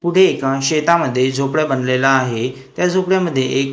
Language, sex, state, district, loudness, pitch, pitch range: Marathi, male, Maharashtra, Gondia, -16 LUFS, 135 Hz, 130-170 Hz